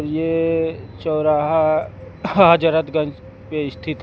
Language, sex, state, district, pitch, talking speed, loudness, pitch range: Hindi, male, Uttar Pradesh, Lucknow, 155 Hz, 75 wpm, -19 LUFS, 150-160 Hz